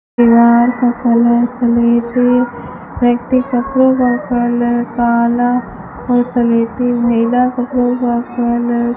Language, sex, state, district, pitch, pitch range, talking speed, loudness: Hindi, female, Rajasthan, Bikaner, 240 Hz, 235-245 Hz, 105 wpm, -13 LUFS